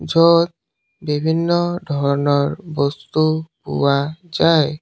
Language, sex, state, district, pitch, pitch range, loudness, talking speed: Assamese, male, Assam, Sonitpur, 155 Hz, 140-165 Hz, -18 LUFS, 75 wpm